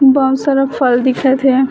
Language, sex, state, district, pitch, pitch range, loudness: Chhattisgarhi, female, Chhattisgarh, Bilaspur, 265 Hz, 260-270 Hz, -13 LUFS